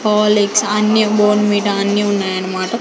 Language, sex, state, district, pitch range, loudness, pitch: Telugu, female, Andhra Pradesh, Sri Satya Sai, 200-210 Hz, -14 LUFS, 210 Hz